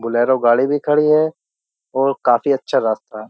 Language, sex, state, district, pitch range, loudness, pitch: Hindi, male, Uttar Pradesh, Jyotiba Phule Nagar, 115-145 Hz, -17 LUFS, 130 Hz